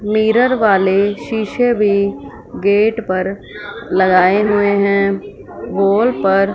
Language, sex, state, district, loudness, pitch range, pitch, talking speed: Hindi, female, Punjab, Fazilka, -15 LUFS, 195-215 Hz, 200 Hz, 100 wpm